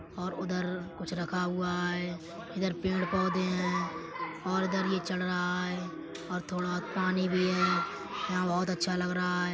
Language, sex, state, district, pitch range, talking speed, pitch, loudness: Hindi, male, Uttar Pradesh, Etah, 175-185 Hz, 170 wpm, 180 Hz, -32 LUFS